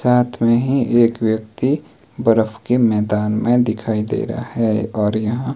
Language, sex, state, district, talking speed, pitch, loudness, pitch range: Hindi, male, Himachal Pradesh, Shimla, 160 wpm, 115 Hz, -18 LUFS, 110-120 Hz